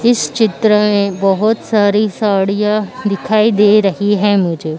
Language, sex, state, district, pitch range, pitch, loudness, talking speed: Hindi, female, Maharashtra, Mumbai Suburban, 200-215 Hz, 205 Hz, -13 LUFS, 140 wpm